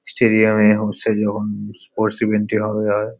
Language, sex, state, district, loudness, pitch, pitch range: Bengali, male, West Bengal, Paschim Medinipur, -18 LUFS, 105 Hz, 105-110 Hz